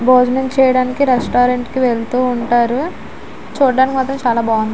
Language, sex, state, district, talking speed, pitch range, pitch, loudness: Telugu, female, Andhra Pradesh, Visakhapatnam, 125 wpm, 240-260 Hz, 255 Hz, -15 LUFS